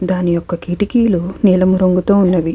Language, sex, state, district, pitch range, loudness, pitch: Telugu, female, Andhra Pradesh, Krishna, 175-195 Hz, -14 LUFS, 185 Hz